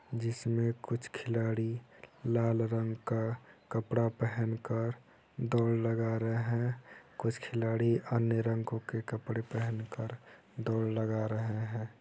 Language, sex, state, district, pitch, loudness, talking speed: Hindi, male, Bihar, East Champaran, 115 Hz, -34 LUFS, 120 wpm